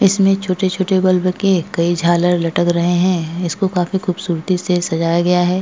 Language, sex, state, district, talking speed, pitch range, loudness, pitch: Hindi, female, Goa, North and South Goa, 170 wpm, 175-190 Hz, -16 LUFS, 180 Hz